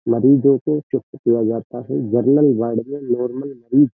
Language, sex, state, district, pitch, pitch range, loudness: Hindi, male, Uttar Pradesh, Jyotiba Phule Nagar, 130 Hz, 115-140 Hz, -18 LUFS